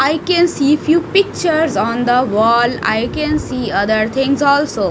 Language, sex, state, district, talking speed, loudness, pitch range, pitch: English, female, Punjab, Fazilka, 170 wpm, -15 LUFS, 235-310 Hz, 275 Hz